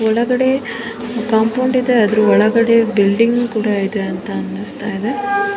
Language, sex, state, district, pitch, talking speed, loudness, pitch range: Kannada, female, Karnataka, Shimoga, 230 Hz, 95 wpm, -16 LUFS, 210-245 Hz